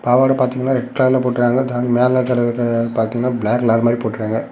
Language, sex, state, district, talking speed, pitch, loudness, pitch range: Tamil, male, Tamil Nadu, Namakkal, 105 wpm, 120 Hz, -17 LUFS, 115-125 Hz